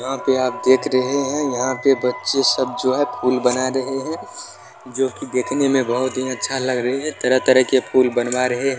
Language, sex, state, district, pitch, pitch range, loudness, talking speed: Maithili, male, Bihar, Supaul, 130 Hz, 125-135 Hz, -19 LUFS, 220 wpm